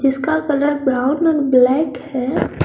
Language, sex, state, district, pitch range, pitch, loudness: Hindi, female, Jharkhand, Garhwa, 260-300 Hz, 280 Hz, -17 LUFS